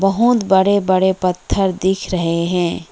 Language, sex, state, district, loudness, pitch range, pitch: Hindi, female, West Bengal, Alipurduar, -16 LUFS, 180-195 Hz, 190 Hz